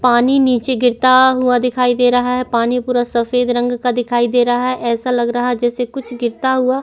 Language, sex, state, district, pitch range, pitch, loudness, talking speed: Hindi, female, Chhattisgarh, Sukma, 245-250 Hz, 245 Hz, -15 LUFS, 220 wpm